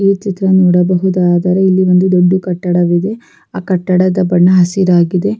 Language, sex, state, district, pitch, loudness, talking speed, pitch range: Kannada, female, Karnataka, Raichur, 185 Hz, -11 LUFS, 120 wpm, 180-190 Hz